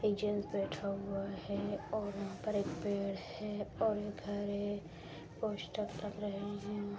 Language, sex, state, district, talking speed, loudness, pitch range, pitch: Hindi, female, Bihar, Begusarai, 165 wpm, -39 LUFS, 200-205 Hz, 205 Hz